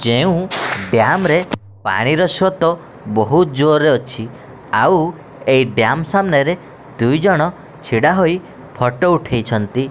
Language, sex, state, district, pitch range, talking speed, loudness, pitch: Odia, male, Odisha, Khordha, 125-170 Hz, 120 wpm, -16 LUFS, 140 Hz